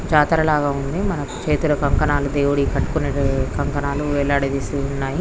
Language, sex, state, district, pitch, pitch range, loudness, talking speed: Telugu, female, Andhra Pradesh, Krishna, 145 Hz, 140-150 Hz, -20 LUFS, 125 wpm